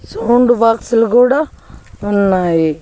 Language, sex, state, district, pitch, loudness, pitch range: Telugu, female, Andhra Pradesh, Annamaya, 230 Hz, -13 LUFS, 190-240 Hz